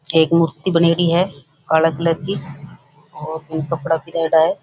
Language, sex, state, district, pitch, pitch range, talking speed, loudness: Rajasthani, female, Rajasthan, Nagaur, 160 Hz, 155-170 Hz, 140 wpm, -18 LUFS